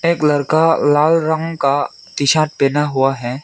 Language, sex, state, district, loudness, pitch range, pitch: Hindi, male, Arunachal Pradesh, Lower Dibang Valley, -16 LUFS, 140-160 Hz, 150 Hz